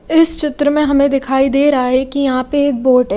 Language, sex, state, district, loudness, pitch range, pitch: Hindi, female, Haryana, Rohtak, -13 LUFS, 260-290 Hz, 280 Hz